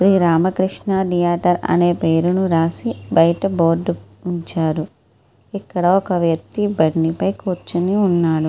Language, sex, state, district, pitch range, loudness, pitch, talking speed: Telugu, female, Andhra Pradesh, Srikakulam, 165-190 Hz, -18 LUFS, 175 Hz, 125 wpm